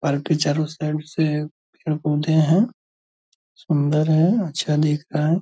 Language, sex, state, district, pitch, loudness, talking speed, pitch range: Hindi, male, Bihar, Purnia, 155 Hz, -21 LUFS, 145 wpm, 150-160 Hz